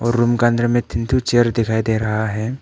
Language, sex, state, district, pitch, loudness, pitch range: Hindi, male, Arunachal Pradesh, Papum Pare, 120 Hz, -18 LUFS, 110-120 Hz